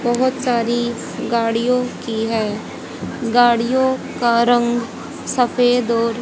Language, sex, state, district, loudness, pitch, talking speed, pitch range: Hindi, female, Haryana, Jhajjar, -18 LUFS, 240 Hz, 95 wpm, 230-245 Hz